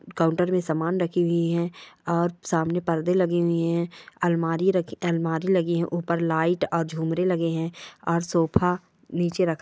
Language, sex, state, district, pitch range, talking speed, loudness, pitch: Hindi, female, Chhattisgarh, Kabirdham, 165-180 Hz, 175 wpm, -25 LUFS, 170 Hz